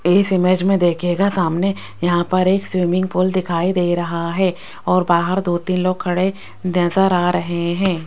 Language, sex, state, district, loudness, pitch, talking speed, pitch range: Hindi, female, Rajasthan, Jaipur, -18 LUFS, 180 Hz, 180 wpm, 175-185 Hz